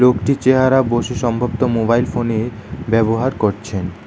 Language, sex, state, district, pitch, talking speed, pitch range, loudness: Bengali, male, West Bengal, Alipurduar, 120 Hz, 135 wpm, 110-125 Hz, -17 LUFS